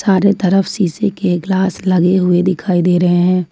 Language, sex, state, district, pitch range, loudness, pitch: Hindi, female, Jharkhand, Ranchi, 180-190 Hz, -14 LUFS, 185 Hz